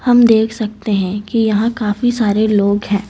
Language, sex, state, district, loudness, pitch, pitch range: Hindi, female, Chhattisgarh, Raipur, -15 LUFS, 215 Hz, 205-225 Hz